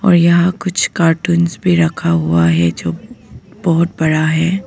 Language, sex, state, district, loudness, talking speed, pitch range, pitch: Hindi, female, Arunachal Pradesh, Papum Pare, -14 LUFS, 155 wpm, 130-175 Hz, 165 Hz